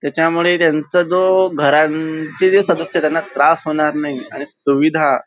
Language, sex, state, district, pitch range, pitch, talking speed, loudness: Marathi, male, Maharashtra, Nagpur, 150-175 Hz, 160 Hz, 135 wpm, -15 LUFS